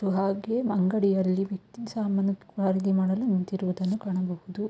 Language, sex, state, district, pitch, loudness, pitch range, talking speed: Kannada, female, Karnataka, Mysore, 195 Hz, -27 LUFS, 190-200 Hz, 90 wpm